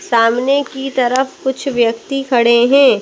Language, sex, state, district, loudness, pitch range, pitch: Hindi, female, Madhya Pradesh, Bhopal, -14 LUFS, 235-275 Hz, 265 Hz